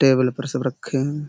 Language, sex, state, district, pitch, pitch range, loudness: Hindi, male, Uttar Pradesh, Budaun, 135 Hz, 130-145 Hz, -22 LUFS